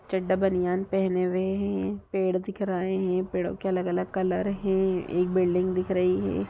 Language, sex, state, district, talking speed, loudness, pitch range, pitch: Hindi, female, Bihar, Sitamarhi, 195 wpm, -27 LUFS, 180-190 Hz, 185 Hz